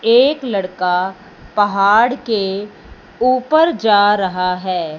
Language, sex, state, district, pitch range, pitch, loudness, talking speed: Hindi, male, Punjab, Fazilka, 185-240 Hz, 205 Hz, -16 LUFS, 95 wpm